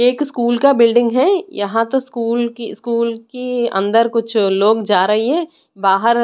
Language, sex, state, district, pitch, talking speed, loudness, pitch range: Hindi, female, Odisha, Khordha, 235 Hz, 180 wpm, -16 LUFS, 220-250 Hz